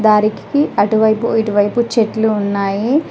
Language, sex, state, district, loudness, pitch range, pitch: Telugu, female, Telangana, Mahabubabad, -15 LUFS, 205-235 Hz, 220 Hz